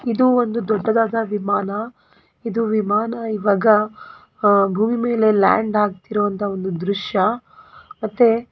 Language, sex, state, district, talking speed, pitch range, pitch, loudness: Kannada, female, Karnataka, Gulbarga, 115 wpm, 205-230 Hz, 215 Hz, -19 LUFS